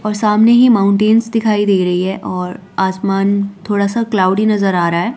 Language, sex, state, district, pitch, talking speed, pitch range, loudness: Hindi, female, Himachal Pradesh, Shimla, 200 Hz, 195 wpm, 190-215 Hz, -14 LUFS